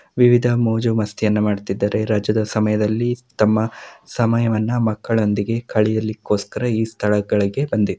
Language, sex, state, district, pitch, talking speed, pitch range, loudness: Kannada, male, Karnataka, Mysore, 110 Hz, 100 wpm, 105-115 Hz, -19 LUFS